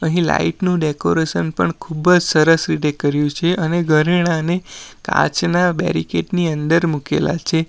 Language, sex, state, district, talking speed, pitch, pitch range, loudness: Gujarati, male, Gujarat, Valsad, 150 wpm, 165 Hz, 150-175 Hz, -17 LUFS